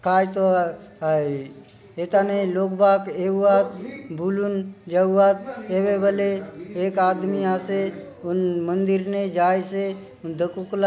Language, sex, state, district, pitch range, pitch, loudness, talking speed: Halbi, male, Chhattisgarh, Bastar, 180-195 Hz, 190 Hz, -22 LUFS, 105 wpm